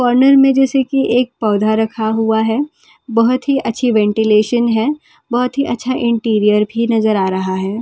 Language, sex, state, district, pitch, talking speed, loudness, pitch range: Hindi, female, Delhi, New Delhi, 230 Hz, 175 wpm, -15 LUFS, 220-260 Hz